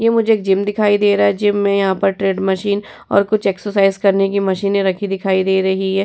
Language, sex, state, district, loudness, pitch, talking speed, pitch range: Hindi, female, Uttar Pradesh, Etah, -16 LUFS, 200 Hz, 245 wpm, 195-205 Hz